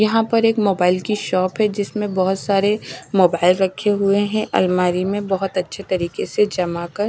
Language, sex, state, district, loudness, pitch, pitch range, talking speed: Hindi, female, Chandigarh, Chandigarh, -19 LUFS, 195 Hz, 185-210 Hz, 185 wpm